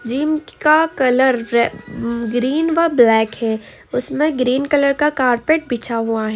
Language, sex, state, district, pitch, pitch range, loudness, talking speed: Hindi, female, Jharkhand, Jamtara, 255 Hz, 235-300 Hz, -17 LUFS, 150 wpm